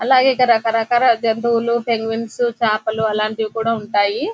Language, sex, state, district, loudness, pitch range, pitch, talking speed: Telugu, female, Telangana, Nalgonda, -17 LUFS, 220-235 Hz, 225 Hz, 125 wpm